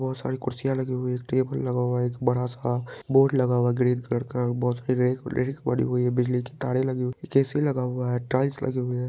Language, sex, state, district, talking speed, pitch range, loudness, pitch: Hindi, male, Bihar, Saharsa, 285 wpm, 125-130 Hz, -26 LUFS, 125 Hz